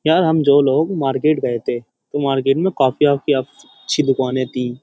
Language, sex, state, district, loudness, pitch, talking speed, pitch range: Hindi, male, Uttar Pradesh, Jyotiba Phule Nagar, -17 LUFS, 140 Hz, 175 wpm, 130-150 Hz